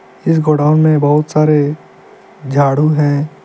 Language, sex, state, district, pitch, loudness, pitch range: Hindi, male, Jharkhand, Deoghar, 150 Hz, -13 LUFS, 145-155 Hz